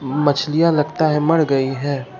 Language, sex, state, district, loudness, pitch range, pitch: Hindi, male, Bihar, Katihar, -18 LUFS, 135-155 Hz, 145 Hz